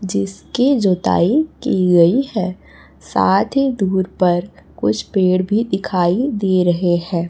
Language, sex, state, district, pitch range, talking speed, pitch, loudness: Hindi, female, Chhattisgarh, Raipur, 175-215 Hz, 125 wpm, 185 Hz, -17 LUFS